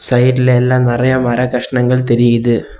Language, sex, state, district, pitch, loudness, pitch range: Tamil, male, Tamil Nadu, Kanyakumari, 125 Hz, -13 LUFS, 120-125 Hz